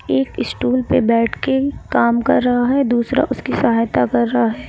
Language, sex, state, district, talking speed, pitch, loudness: Hindi, female, Uttar Pradesh, Lalitpur, 180 wpm, 235 Hz, -17 LUFS